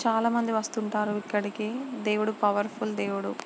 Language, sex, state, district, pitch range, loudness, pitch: Telugu, female, Andhra Pradesh, Srikakulam, 205-225 Hz, -28 LUFS, 210 Hz